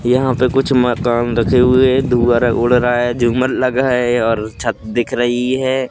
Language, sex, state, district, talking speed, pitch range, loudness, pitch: Hindi, male, Madhya Pradesh, Katni, 195 wpm, 120-130 Hz, -15 LUFS, 125 Hz